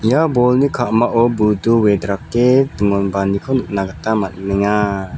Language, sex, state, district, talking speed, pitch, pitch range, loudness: Garo, male, Meghalaya, South Garo Hills, 105 wpm, 105 Hz, 100-120 Hz, -16 LUFS